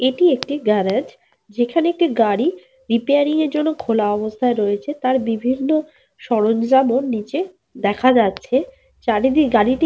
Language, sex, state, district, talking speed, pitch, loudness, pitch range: Bengali, female, Jharkhand, Sahebganj, 135 wpm, 260 Hz, -18 LUFS, 230-310 Hz